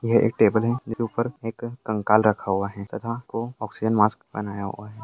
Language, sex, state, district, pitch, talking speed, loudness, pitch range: Hindi, male, Bihar, Jamui, 110 Hz, 215 wpm, -24 LUFS, 105-115 Hz